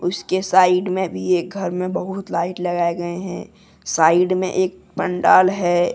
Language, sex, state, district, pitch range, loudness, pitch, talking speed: Hindi, male, Jharkhand, Deoghar, 175-185 Hz, -19 LUFS, 180 Hz, 170 wpm